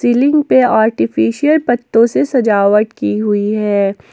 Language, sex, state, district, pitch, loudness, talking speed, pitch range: Hindi, female, Jharkhand, Ranchi, 220 Hz, -13 LUFS, 130 wpm, 205-250 Hz